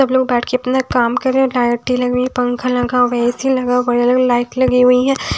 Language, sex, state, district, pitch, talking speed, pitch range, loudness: Hindi, female, Odisha, Nuapada, 250 Hz, 280 wpm, 245-255 Hz, -15 LUFS